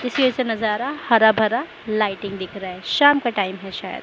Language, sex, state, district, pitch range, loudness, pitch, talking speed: Hindi, male, Maharashtra, Mumbai Suburban, 195-250 Hz, -20 LUFS, 215 Hz, 210 wpm